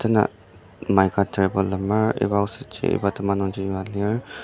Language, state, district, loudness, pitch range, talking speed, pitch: Ao, Nagaland, Dimapur, -23 LUFS, 95-105 Hz, 135 wpm, 100 Hz